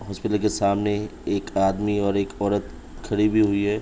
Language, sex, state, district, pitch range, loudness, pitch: Hindi, male, Uttar Pradesh, Budaun, 100-105 Hz, -23 LUFS, 105 Hz